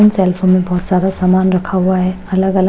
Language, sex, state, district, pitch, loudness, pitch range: Hindi, female, Odisha, Malkangiri, 185 Hz, -14 LUFS, 185-190 Hz